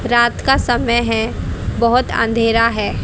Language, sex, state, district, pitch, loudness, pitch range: Hindi, female, Haryana, Charkhi Dadri, 235 Hz, -16 LUFS, 230-240 Hz